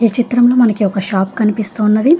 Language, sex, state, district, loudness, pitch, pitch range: Telugu, female, Telangana, Hyderabad, -13 LUFS, 215 Hz, 210-245 Hz